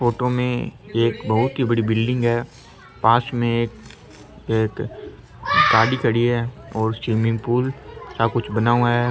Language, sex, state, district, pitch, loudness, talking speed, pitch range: Rajasthani, male, Rajasthan, Churu, 120 Hz, -20 LUFS, 145 wpm, 115-120 Hz